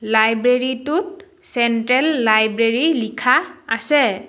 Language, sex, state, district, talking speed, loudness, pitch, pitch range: Assamese, female, Assam, Sonitpur, 85 wpm, -17 LUFS, 250 Hz, 225-305 Hz